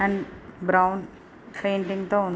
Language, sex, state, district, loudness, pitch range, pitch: Telugu, female, Andhra Pradesh, Guntur, -25 LUFS, 185-200 Hz, 195 Hz